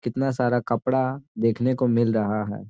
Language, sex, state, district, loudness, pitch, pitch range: Hindi, male, Bihar, Gaya, -24 LUFS, 120 Hz, 115-130 Hz